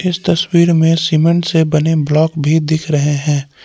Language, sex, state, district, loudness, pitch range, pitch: Hindi, male, Jharkhand, Palamu, -13 LUFS, 150-165 Hz, 160 Hz